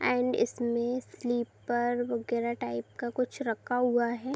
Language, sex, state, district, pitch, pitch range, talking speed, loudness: Hindi, female, Uttar Pradesh, Budaun, 240 Hz, 235-245 Hz, 150 wpm, -31 LUFS